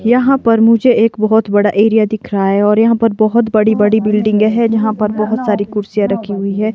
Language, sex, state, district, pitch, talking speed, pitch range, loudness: Hindi, female, Himachal Pradesh, Shimla, 215 Hz, 230 wpm, 210-225 Hz, -12 LUFS